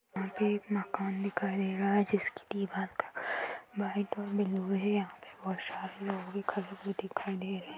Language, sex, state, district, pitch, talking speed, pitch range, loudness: Hindi, female, Uttar Pradesh, Jyotiba Phule Nagar, 200 Hz, 195 wpm, 190-205 Hz, -35 LUFS